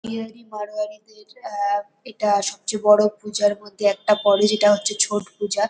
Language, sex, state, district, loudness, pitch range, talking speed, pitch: Bengali, female, West Bengal, Kolkata, -21 LUFS, 205-215 Hz, 145 wpm, 210 Hz